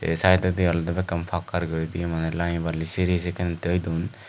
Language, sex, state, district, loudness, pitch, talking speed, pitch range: Chakma, male, Tripura, Dhalai, -25 LUFS, 85 Hz, 140 wpm, 85-90 Hz